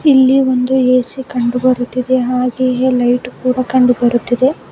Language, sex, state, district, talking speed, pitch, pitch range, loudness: Kannada, female, Karnataka, Bangalore, 125 wpm, 255 Hz, 245-260 Hz, -14 LUFS